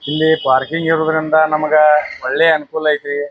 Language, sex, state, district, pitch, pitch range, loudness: Kannada, male, Karnataka, Bijapur, 155 Hz, 150-160 Hz, -14 LUFS